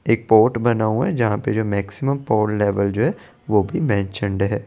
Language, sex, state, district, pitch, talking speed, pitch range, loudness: Hindi, male, Chandigarh, Chandigarh, 110 Hz, 155 wpm, 100-120 Hz, -19 LUFS